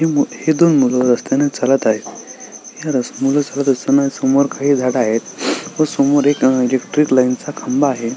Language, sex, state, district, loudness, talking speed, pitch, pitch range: Marathi, male, Maharashtra, Solapur, -16 LUFS, 160 wpm, 140 Hz, 130-145 Hz